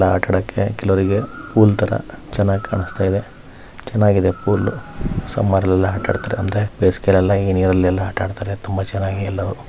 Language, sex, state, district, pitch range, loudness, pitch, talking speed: Kannada, male, Karnataka, Raichur, 95-105 Hz, -19 LUFS, 100 Hz, 110 wpm